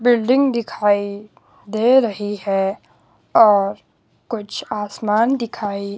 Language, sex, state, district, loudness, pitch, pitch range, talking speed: Hindi, female, Himachal Pradesh, Shimla, -18 LUFS, 210 Hz, 200-235 Hz, 90 wpm